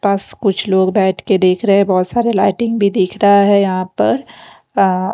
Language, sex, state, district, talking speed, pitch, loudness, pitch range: Hindi, female, Punjab, Pathankot, 220 wpm, 195 Hz, -14 LUFS, 190-200 Hz